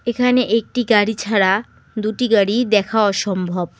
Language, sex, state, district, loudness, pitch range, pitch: Bengali, female, West Bengal, Alipurduar, -17 LUFS, 200-235 Hz, 215 Hz